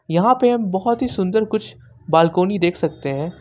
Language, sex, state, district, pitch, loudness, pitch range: Hindi, male, Jharkhand, Ranchi, 180 Hz, -19 LUFS, 160-220 Hz